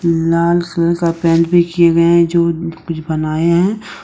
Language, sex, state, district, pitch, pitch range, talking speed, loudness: Hindi, male, Jharkhand, Deoghar, 170 Hz, 165-170 Hz, 165 wpm, -14 LUFS